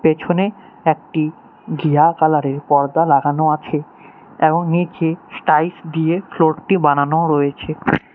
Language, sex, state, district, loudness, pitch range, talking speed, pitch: Bengali, male, West Bengal, Cooch Behar, -17 LUFS, 150-170 Hz, 120 wpm, 160 Hz